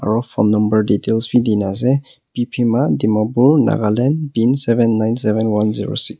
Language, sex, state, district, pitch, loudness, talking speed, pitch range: Nagamese, male, Nagaland, Kohima, 115 Hz, -16 LUFS, 175 wpm, 105-125 Hz